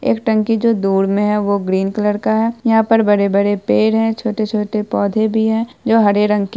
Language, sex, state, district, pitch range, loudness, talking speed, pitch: Hindi, female, Bihar, Saharsa, 205-225 Hz, -15 LUFS, 230 wpm, 215 Hz